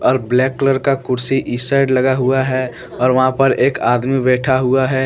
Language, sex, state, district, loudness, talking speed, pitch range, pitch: Hindi, male, Jharkhand, Deoghar, -15 LUFS, 215 wpm, 125-135 Hz, 130 Hz